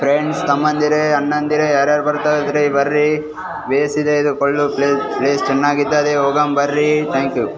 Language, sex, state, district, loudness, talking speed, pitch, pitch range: Kannada, male, Karnataka, Raichur, -16 LUFS, 125 wpm, 145 Hz, 140-150 Hz